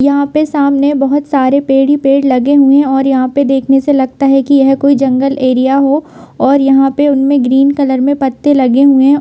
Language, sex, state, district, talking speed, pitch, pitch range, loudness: Hindi, female, Bihar, Kishanganj, 220 wpm, 275 Hz, 270-280 Hz, -10 LUFS